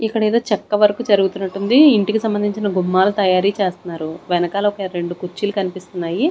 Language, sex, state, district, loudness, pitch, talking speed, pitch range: Telugu, female, Andhra Pradesh, Sri Satya Sai, -18 LUFS, 200 Hz, 150 wpm, 185-210 Hz